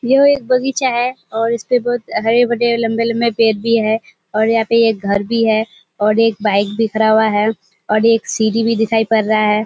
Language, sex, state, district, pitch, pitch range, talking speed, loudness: Hindi, female, Bihar, Kishanganj, 225 Hz, 215-235 Hz, 210 wpm, -15 LUFS